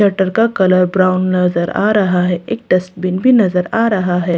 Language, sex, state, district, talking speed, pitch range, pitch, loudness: Hindi, female, Delhi, New Delhi, 220 wpm, 180-205 Hz, 185 Hz, -14 LUFS